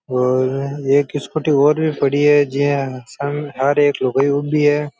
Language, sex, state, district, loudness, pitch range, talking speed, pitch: Rajasthani, male, Rajasthan, Churu, -17 LUFS, 135-145 Hz, 155 wpm, 145 Hz